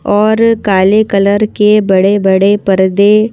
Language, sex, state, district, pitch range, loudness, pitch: Hindi, female, Madhya Pradesh, Bhopal, 195-215 Hz, -9 LUFS, 205 Hz